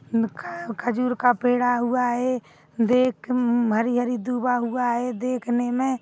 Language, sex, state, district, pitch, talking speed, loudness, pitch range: Hindi, female, Chhattisgarh, Bilaspur, 245 Hz, 130 wpm, -23 LUFS, 240-250 Hz